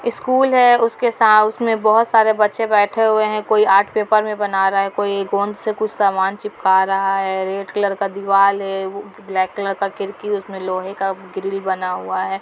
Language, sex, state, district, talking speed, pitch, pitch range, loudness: Hindi, female, Bihar, Kishanganj, 200 wpm, 200 Hz, 195-215 Hz, -17 LUFS